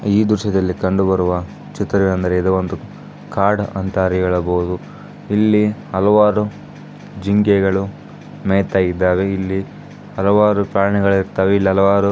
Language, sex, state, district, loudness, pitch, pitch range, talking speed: Kannada, male, Karnataka, Bijapur, -17 LUFS, 95 Hz, 95-100 Hz, 110 wpm